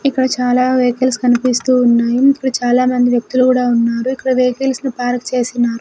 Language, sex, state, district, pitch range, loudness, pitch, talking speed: Telugu, female, Andhra Pradesh, Sri Satya Sai, 245-255 Hz, -14 LUFS, 250 Hz, 155 wpm